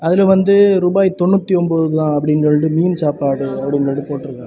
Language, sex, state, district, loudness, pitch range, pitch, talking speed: Tamil, male, Tamil Nadu, Kanyakumari, -15 LUFS, 145-185 Hz, 155 Hz, 160 wpm